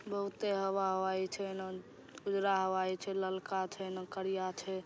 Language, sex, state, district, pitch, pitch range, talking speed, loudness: Maithili, female, Bihar, Saharsa, 190 Hz, 185-195 Hz, 160 wpm, -36 LUFS